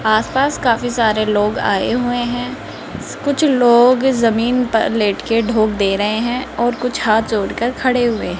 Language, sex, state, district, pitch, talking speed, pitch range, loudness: Hindi, female, Rajasthan, Jaipur, 235 Hz, 170 wpm, 215-250 Hz, -16 LUFS